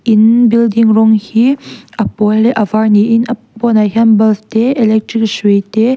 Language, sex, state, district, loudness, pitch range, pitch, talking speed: Mizo, female, Mizoram, Aizawl, -11 LUFS, 215-230 Hz, 220 Hz, 190 wpm